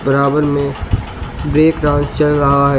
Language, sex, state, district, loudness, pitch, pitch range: Hindi, male, Uttar Pradesh, Shamli, -15 LUFS, 140 Hz, 135-145 Hz